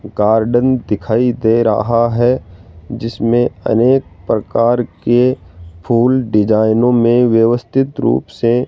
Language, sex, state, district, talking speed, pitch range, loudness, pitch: Hindi, male, Rajasthan, Jaipur, 110 wpm, 110-120 Hz, -14 LUFS, 115 Hz